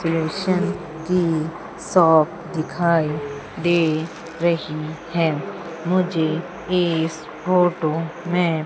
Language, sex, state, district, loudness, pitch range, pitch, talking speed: Hindi, female, Madhya Pradesh, Umaria, -21 LUFS, 155-175 Hz, 165 Hz, 75 wpm